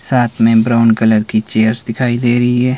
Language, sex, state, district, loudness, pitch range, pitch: Hindi, male, Himachal Pradesh, Shimla, -13 LUFS, 110-120 Hz, 115 Hz